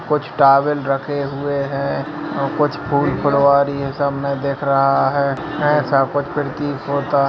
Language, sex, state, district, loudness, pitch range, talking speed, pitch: Hindi, male, Bihar, Lakhisarai, -18 LUFS, 140-145 Hz, 155 wpm, 140 Hz